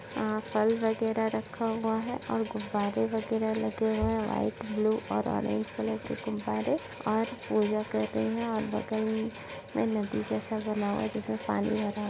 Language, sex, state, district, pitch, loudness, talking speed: Bhojpuri, female, Bihar, Saran, 215 Hz, -31 LUFS, 180 wpm